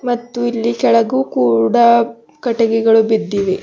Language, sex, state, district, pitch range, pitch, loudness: Kannada, female, Karnataka, Bidar, 220-240 Hz, 230 Hz, -14 LUFS